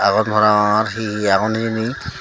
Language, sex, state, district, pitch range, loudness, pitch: Chakma, female, Tripura, Dhalai, 105-110 Hz, -17 LUFS, 110 Hz